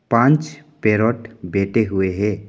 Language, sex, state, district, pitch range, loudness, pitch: Hindi, male, Arunachal Pradesh, Papum Pare, 100-125 Hz, -19 LUFS, 110 Hz